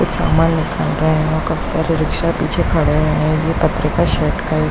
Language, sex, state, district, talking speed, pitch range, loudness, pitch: Hindi, female, Chhattisgarh, Bilaspur, 180 wpm, 155-160 Hz, -16 LUFS, 155 Hz